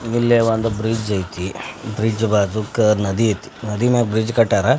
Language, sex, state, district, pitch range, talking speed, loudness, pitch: Kannada, male, Karnataka, Bijapur, 105-115 Hz, 150 wpm, -19 LUFS, 110 Hz